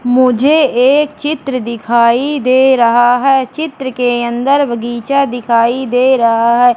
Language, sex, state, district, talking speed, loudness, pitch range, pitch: Hindi, female, Madhya Pradesh, Katni, 135 wpm, -12 LUFS, 240-275 Hz, 255 Hz